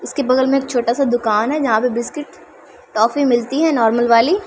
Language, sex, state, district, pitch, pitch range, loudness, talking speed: Maithili, female, Bihar, Samastipur, 250 Hz, 235-285 Hz, -16 LUFS, 200 wpm